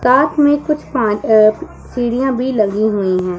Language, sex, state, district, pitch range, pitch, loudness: Hindi, female, Punjab, Pathankot, 215-265 Hz, 245 Hz, -15 LUFS